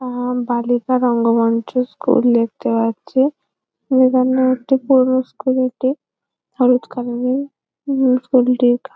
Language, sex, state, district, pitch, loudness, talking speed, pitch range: Bengali, female, West Bengal, Jhargram, 250 Hz, -17 LUFS, 105 wpm, 245-260 Hz